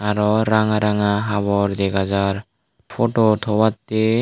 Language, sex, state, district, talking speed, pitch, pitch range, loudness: Chakma, male, Tripura, Dhalai, 115 wpm, 105 Hz, 100-110 Hz, -19 LUFS